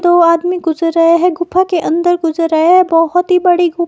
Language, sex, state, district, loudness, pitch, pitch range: Hindi, female, Himachal Pradesh, Shimla, -12 LUFS, 345 Hz, 330-355 Hz